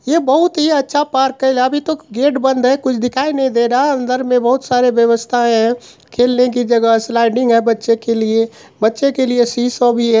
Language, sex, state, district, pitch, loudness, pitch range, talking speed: Hindi, female, Bihar, Supaul, 250 Hz, -14 LUFS, 235-265 Hz, 230 wpm